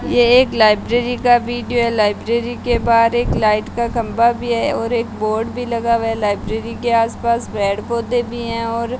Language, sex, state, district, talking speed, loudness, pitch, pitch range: Hindi, female, Rajasthan, Bikaner, 205 wpm, -17 LUFS, 235 Hz, 225-240 Hz